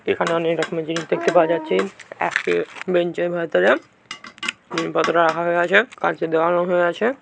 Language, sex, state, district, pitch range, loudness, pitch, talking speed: Bengali, male, West Bengal, Jhargram, 165-175 Hz, -20 LUFS, 170 Hz, 100 wpm